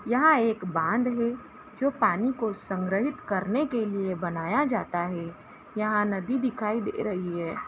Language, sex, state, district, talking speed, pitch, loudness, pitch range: Hindi, female, Jharkhand, Jamtara, 155 wpm, 215 Hz, -27 LUFS, 190-245 Hz